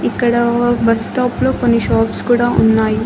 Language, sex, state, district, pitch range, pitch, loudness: Telugu, female, Andhra Pradesh, Annamaya, 225-240 Hz, 235 Hz, -14 LUFS